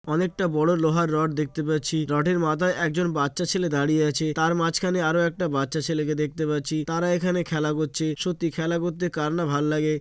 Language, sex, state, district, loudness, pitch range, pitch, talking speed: Bengali, male, West Bengal, Jalpaiguri, -24 LUFS, 155-175 Hz, 160 Hz, 185 wpm